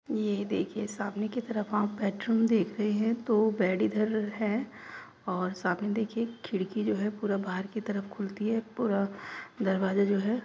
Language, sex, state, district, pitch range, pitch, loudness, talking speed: Hindi, female, Uttar Pradesh, Hamirpur, 200-220 Hz, 210 Hz, -30 LUFS, 195 wpm